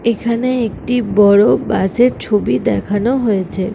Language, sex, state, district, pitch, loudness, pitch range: Bengali, female, West Bengal, Kolkata, 220 Hz, -15 LUFS, 205-240 Hz